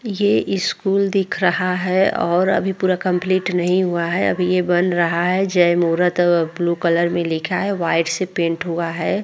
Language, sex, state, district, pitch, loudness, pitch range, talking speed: Hindi, female, Bihar, Vaishali, 180 Hz, -18 LUFS, 170-185 Hz, 200 wpm